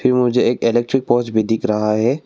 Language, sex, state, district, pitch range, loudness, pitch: Hindi, male, Arunachal Pradesh, Longding, 110-125 Hz, -17 LUFS, 120 Hz